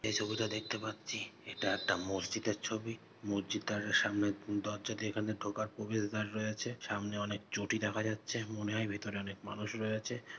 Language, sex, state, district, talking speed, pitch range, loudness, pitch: Bengali, male, West Bengal, North 24 Parganas, 180 wpm, 105-110 Hz, -37 LUFS, 105 Hz